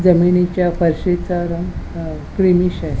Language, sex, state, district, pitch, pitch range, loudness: Marathi, female, Goa, North and South Goa, 180 Hz, 170-180 Hz, -17 LUFS